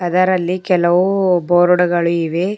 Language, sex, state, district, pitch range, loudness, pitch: Kannada, female, Karnataka, Bidar, 175-185 Hz, -15 LUFS, 180 Hz